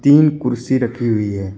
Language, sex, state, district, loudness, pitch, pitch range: Hindi, male, Uttar Pradesh, Shamli, -17 LUFS, 120 Hz, 110-140 Hz